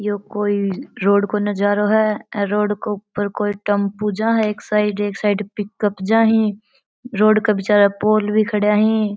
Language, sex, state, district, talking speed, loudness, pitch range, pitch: Marwari, female, Rajasthan, Churu, 185 wpm, -18 LUFS, 205-215 Hz, 210 Hz